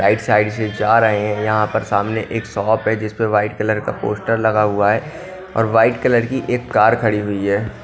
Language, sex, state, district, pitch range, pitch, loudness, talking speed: Hindi, male, Punjab, Kapurthala, 105-115 Hz, 110 Hz, -17 LUFS, 220 wpm